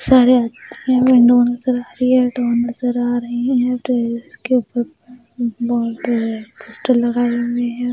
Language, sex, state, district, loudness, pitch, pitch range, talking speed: Hindi, female, Maharashtra, Mumbai Suburban, -17 LUFS, 245 Hz, 240-250 Hz, 105 wpm